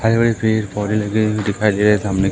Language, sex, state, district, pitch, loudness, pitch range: Hindi, male, Madhya Pradesh, Umaria, 105 Hz, -17 LUFS, 105-110 Hz